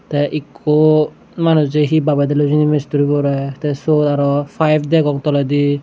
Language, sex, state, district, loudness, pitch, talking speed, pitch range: Chakma, male, Tripura, Dhalai, -15 LUFS, 145 Hz, 135 wpm, 145-155 Hz